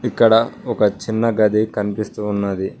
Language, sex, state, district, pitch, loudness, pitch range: Telugu, male, Telangana, Mahabubabad, 110 Hz, -18 LUFS, 105-115 Hz